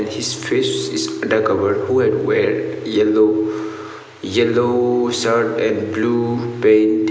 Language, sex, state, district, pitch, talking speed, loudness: English, male, Sikkim, Gangtok, 120 Hz, 120 wpm, -17 LUFS